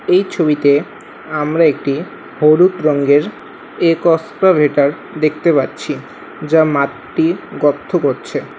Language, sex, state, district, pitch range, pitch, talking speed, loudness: Bengali, male, West Bengal, Alipurduar, 145-170 Hz, 155 Hz, 90 wpm, -15 LUFS